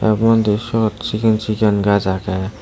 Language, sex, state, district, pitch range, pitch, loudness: Chakma, male, Tripura, West Tripura, 100-110 Hz, 105 Hz, -17 LUFS